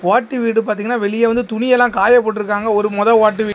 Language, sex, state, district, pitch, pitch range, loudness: Tamil, male, Tamil Nadu, Kanyakumari, 225 Hz, 210-240 Hz, -15 LUFS